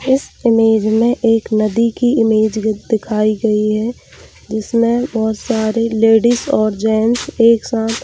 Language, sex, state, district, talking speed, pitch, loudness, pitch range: Hindi, female, Jharkhand, Jamtara, 135 wpm, 225 Hz, -15 LUFS, 220-230 Hz